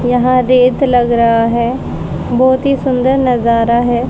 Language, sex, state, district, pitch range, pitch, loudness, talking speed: Hindi, female, Haryana, Rohtak, 235-255 Hz, 245 Hz, -12 LUFS, 145 wpm